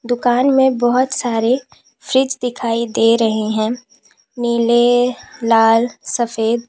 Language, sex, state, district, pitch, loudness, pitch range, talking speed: Hindi, female, Uttar Pradesh, Lalitpur, 240 Hz, -16 LUFS, 230-250 Hz, 110 wpm